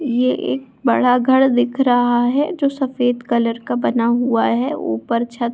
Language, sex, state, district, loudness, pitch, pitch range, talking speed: Hindi, female, Bihar, Saharsa, -17 LUFS, 245 Hz, 240-265 Hz, 185 wpm